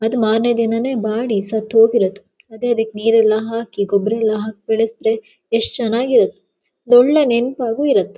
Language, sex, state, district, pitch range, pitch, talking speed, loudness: Kannada, female, Karnataka, Shimoga, 220-235 Hz, 225 Hz, 145 wpm, -17 LUFS